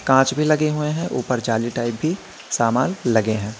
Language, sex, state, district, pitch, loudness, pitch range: Hindi, male, Uttar Pradesh, Lalitpur, 125 Hz, -21 LUFS, 115-155 Hz